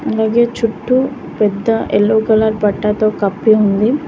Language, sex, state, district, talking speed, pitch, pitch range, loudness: Telugu, female, Telangana, Mahabubabad, 120 wpm, 220 Hz, 210-230 Hz, -14 LUFS